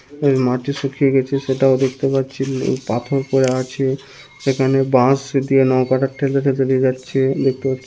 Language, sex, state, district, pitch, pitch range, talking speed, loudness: Bengali, male, West Bengal, Dakshin Dinajpur, 135 Hz, 130-135 Hz, 135 wpm, -18 LUFS